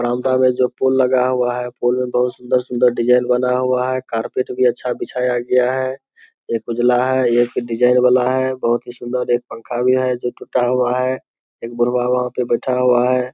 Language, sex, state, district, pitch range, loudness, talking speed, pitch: Hindi, male, Bihar, Saharsa, 120-125 Hz, -18 LUFS, 210 wpm, 125 Hz